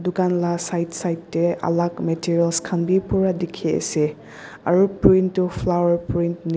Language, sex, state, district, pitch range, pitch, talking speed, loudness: Nagamese, female, Nagaland, Dimapur, 170-180 Hz, 175 Hz, 165 wpm, -21 LUFS